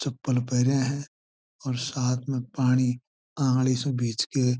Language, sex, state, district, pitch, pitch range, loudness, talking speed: Marwari, male, Rajasthan, Churu, 130 Hz, 125-135 Hz, -26 LUFS, 155 wpm